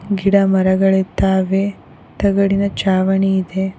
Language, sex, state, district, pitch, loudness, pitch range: Kannada, female, Karnataka, Koppal, 195 Hz, -16 LUFS, 190-200 Hz